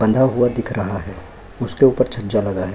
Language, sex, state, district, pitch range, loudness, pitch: Hindi, male, Chhattisgarh, Kabirdham, 100-125 Hz, -19 LUFS, 110 Hz